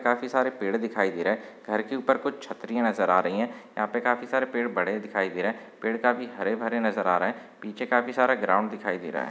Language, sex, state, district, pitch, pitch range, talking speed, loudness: Hindi, male, Maharashtra, Pune, 120 Hz, 105-125 Hz, 270 wpm, -27 LUFS